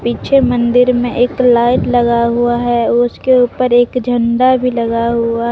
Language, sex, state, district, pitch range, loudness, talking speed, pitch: Hindi, female, Jharkhand, Deoghar, 235-250 Hz, -12 LUFS, 165 wpm, 245 Hz